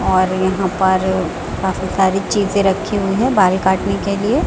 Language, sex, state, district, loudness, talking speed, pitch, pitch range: Hindi, female, Chhattisgarh, Raipur, -16 LUFS, 175 wpm, 195 Hz, 190-200 Hz